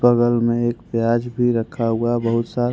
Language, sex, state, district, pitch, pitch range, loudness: Hindi, male, Jharkhand, Ranchi, 120 Hz, 115-120 Hz, -20 LUFS